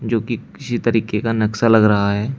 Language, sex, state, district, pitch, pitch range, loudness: Hindi, male, Uttar Pradesh, Shamli, 115 Hz, 105-120 Hz, -18 LUFS